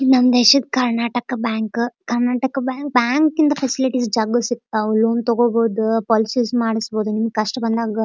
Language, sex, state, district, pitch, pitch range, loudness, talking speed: Kannada, female, Karnataka, Dharwad, 235 Hz, 225-250 Hz, -18 LUFS, 125 wpm